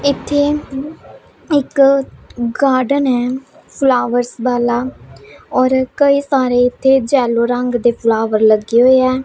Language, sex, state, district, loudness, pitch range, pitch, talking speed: Hindi, male, Punjab, Pathankot, -14 LUFS, 240-275 Hz, 255 Hz, 110 wpm